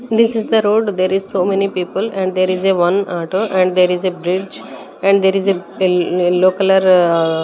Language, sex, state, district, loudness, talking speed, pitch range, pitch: English, female, Chandigarh, Chandigarh, -15 LUFS, 215 wpm, 180-195 Hz, 185 Hz